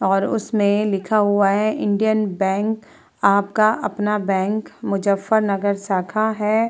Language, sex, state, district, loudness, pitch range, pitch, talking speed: Hindi, female, Uttar Pradesh, Muzaffarnagar, -20 LUFS, 200-215 Hz, 205 Hz, 135 wpm